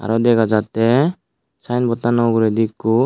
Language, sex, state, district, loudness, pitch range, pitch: Chakma, male, Tripura, Dhalai, -17 LUFS, 110-120 Hz, 115 Hz